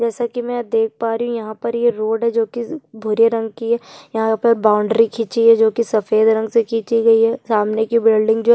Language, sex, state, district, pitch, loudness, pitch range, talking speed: Hindi, female, Chhattisgarh, Sukma, 230 Hz, -17 LUFS, 220-235 Hz, 250 wpm